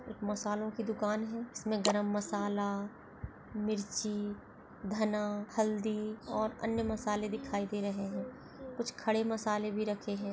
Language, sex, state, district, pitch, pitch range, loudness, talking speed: Hindi, female, Goa, North and South Goa, 210 Hz, 205-220 Hz, -35 LUFS, 135 wpm